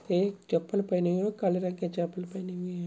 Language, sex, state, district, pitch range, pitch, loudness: Hindi, male, Bihar, Bhagalpur, 175-195 Hz, 180 Hz, -30 LUFS